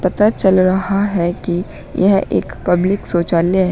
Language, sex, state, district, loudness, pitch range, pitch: Hindi, female, Uttar Pradesh, Shamli, -16 LUFS, 175-195 Hz, 185 Hz